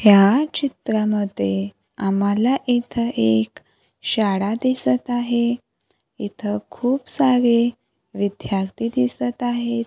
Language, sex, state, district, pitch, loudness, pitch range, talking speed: Marathi, female, Maharashtra, Gondia, 230 Hz, -21 LUFS, 200-245 Hz, 85 wpm